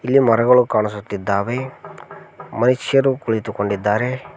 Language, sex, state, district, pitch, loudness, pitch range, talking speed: Kannada, male, Karnataka, Koppal, 115 Hz, -18 LUFS, 105-125 Hz, 70 wpm